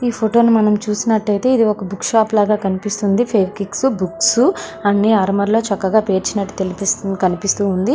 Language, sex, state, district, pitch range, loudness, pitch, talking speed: Telugu, female, Andhra Pradesh, Srikakulam, 195-220 Hz, -16 LUFS, 205 Hz, 130 wpm